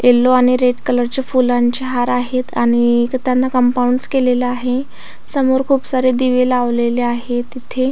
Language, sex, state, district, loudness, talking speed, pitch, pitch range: Marathi, female, Maharashtra, Aurangabad, -15 LUFS, 150 wpm, 250 Hz, 245-255 Hz